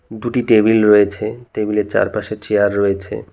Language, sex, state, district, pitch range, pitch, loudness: Bengali, male, West Bengal, Cooch Behar, 105-110 Hz, 105 Hz, -16 LUFS